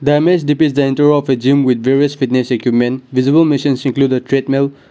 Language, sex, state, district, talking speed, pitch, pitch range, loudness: English, male, Nagaland, Dimapur, 195 wpm, 135 Hz, 130-145 Hz, -14 LUFS